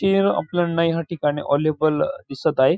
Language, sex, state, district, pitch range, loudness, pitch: Marathi, female, Maharashtra, Dhule, 145-175 Hz, -21 LUFS, 165 Hz